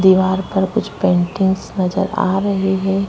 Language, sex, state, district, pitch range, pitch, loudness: Hindi, female, Maharashtra, Chandrapur, 190-195 Hz, 190 Hz, -17 LUFS